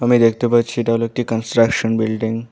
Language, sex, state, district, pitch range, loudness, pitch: Bengali, male, West Bengal, Alipurduar, 115-120 Hz, -17 LUFS, 115 Hz